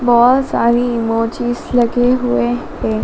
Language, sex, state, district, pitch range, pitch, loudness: Hindi, female, Madhya Pradesh, Dhar, 225-245 Hz, 240 Hz, -15 LUFS